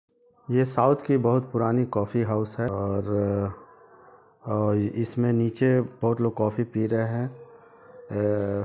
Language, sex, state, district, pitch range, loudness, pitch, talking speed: Hindi, male, Bihar, Sitamarhi, 105-130 Hz, -25 LUFS, 115 Hz, 150 wpm